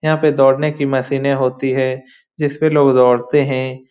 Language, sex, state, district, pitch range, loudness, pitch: Hindi, male, Bihar, Lakhisarai, 130-145 Hz, -15 LUFS, 135 Hz